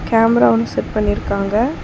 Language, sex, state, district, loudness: Tamil, female, Tamil Nadu, Chennai, -16 LUFS